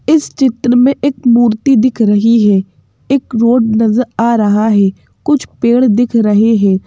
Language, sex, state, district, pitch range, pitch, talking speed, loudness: Hindi, female, Madhya Pradesh, Bhopal, 215-250 Hz, 235 Hz, 165 wpm, -11 LUFS